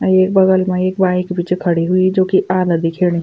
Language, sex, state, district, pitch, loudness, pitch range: Garhwali, female, Uttarakhand, Tehri Garhwal, 185 Hz, -15 LUFS, 180-185 Hz